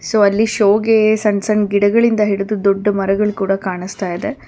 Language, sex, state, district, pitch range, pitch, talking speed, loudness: Kannada, female, Karnataka, Bangalore, 195-215 Hz, 205 Hz, 175 wpm, -15 LUFS